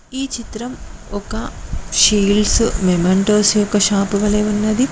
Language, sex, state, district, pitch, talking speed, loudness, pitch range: Telugu, female, Telangana, Mahabubabad, 210 Hz, 95 wpm, -16 LUFS, 200-220 Hz